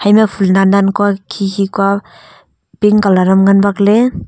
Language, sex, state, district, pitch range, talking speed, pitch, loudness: Wancho, female, Arunachal Pradesh, Longding, 195-205 Hz, 180 wpm, 200 Hz, -12 LUFS